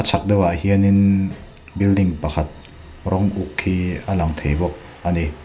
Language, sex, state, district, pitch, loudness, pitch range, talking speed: Mizo, male, Mizoram, Aizawl, 90 Hz, -20 LUFS, 75-100 Hz, 145 wpm